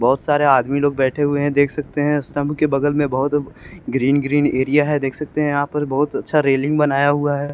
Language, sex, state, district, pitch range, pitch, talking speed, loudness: Hindi, male, Chandigarh, Chandigarh, 140-145 Hz, 145 Hz, 230 wpm, -18 LUFS